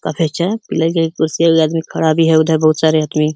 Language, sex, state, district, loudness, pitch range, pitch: Hindi, male, Uttar Pradesh, Hamirpur, -14 LUFS, 155-165 Hz, 160 Hz